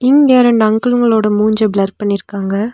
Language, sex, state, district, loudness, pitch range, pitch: Tamil, female, Tamil Nadu, Nilgiris, -13 LUFS, 205-240 Hz, 215 Hz